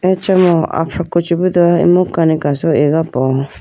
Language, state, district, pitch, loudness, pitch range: Idu Mishmi, Arunachal Pradesh, Lower Dibang Valley, 170 Hz, -13 LUFS, 160-175 Hz